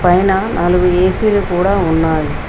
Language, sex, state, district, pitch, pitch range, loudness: Telugu, female, Telangana, Mahabubabad, 180 Hz, 175-190 Hz, -14 LUFS